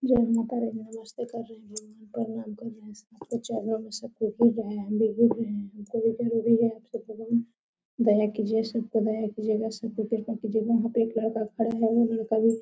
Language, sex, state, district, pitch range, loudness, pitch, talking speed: Hindi, female, Jharkhand, Sahebganj, 220-230 Hz, -27 LUFS, 225 Hz, 140 wpm